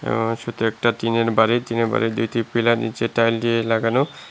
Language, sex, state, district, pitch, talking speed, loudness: Bengali, male, Tripura, Unakoti, 115 Hz, 180 wpm, -20 LUFS